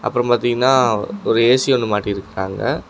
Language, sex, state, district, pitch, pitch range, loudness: Tamil, male, Tamil Nadu, Namakkal, 120 Hz, 105-125 Hz, -17 LUFS